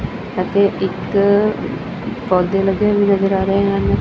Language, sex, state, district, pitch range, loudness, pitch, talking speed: Punjabi, female, Punjab, Fazilka, 190-200 Hz, -17 LUFS, 195 Hz, 135 wpm